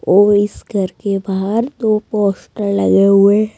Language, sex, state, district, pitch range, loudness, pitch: Hindi, female, Uttar Pradesh, Saharanpur, 195-210 Hz, -15 LUFS, 200 Hz